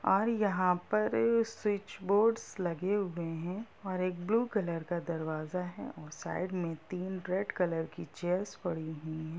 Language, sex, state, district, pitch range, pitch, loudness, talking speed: Hindi, female, Bihar, Sitamarhi, 165-200 Hz, 180 Hz, -34 LUFS, 165 wpm